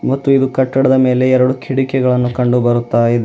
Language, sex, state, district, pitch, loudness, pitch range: Kannada, male, Karnataka, Bidar, 130 Hz, -14 LUFS, 125-135 Hz